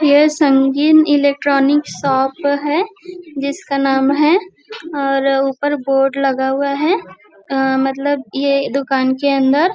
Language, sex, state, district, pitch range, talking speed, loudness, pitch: Hindi, female, Maharashtra, Nagpur, 270-300 Hz, 125 wpm, -15 LUFS, 280 Hz